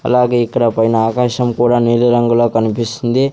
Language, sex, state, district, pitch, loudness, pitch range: Telugu, male, Andhra Pradesh, Sri Satya Sai, 120 Hz, -14 LUFS, 115-120 Hz